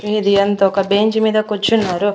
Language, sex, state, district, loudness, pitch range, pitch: Telugu, female, Andhra Pradesh, Annamaya, -15 LUFS, 200-215 Hz, 205 Hz